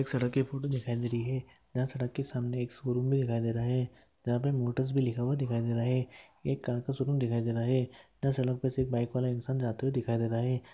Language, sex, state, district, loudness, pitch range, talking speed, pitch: Hindi, male, Andhra Pradesh, Guntur, -32 LUFS, 120-130 Hz, 285 wpm, 125 Hz